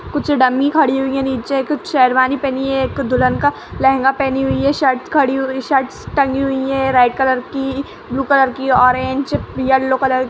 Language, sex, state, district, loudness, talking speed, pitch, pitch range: Hindi, female, Chhattisgarh, Rajnandgaon, -16 LUFS, 200 wpm, 265 Hz, 260-275 Hz